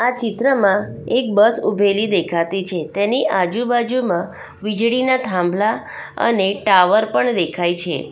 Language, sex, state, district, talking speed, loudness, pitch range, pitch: Gujarati, female, Gujarat, Valsad, 110 wpm, -18 LUFS, 180-235 Hz, 205 Hz